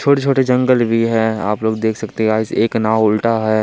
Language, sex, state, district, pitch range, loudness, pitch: Hindi, male, Chandigarh, Chandigarh, 110-115 Hz, -16 LUFS, 110 Hz